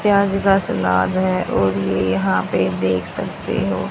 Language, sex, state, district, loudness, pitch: Hindi, female, Haryana, Charkhi Dadri, -19 LUFS, 95 Hz